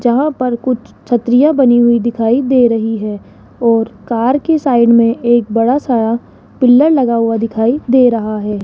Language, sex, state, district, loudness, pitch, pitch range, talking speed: Hindi, female, Rajasthan, Jaipur, -12 LUFS, 235 Hz, 230-255 Hz, 175 wpm